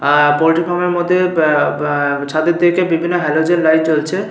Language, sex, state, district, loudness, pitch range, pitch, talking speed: Bengali, male, West Bengal, Paschim Medinipur, -14 LUFS, 150-175 Hz, 160 Hz, 195 wpm